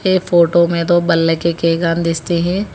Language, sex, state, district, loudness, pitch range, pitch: Hindi, female, Telangana, Hyderabad, -15 LUFS, 165-175 Hz, 170 Hz